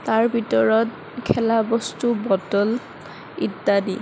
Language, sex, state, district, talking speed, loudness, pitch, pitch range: Assamese, female, Assam, Kamrup Metropolitan, 90 wpm, -21 LUFS, 225 Hz, 200-230 Hz